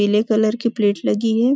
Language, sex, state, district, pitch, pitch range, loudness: Hindi, female, Maharashtra, Nagpur, 220 Hz, 210-230 Hz, -18 LUFS